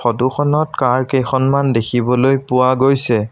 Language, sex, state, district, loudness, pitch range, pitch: Assamese, male, Assam, Sonitpur, -15 LUFS, 125-135 Hz, 130 Hz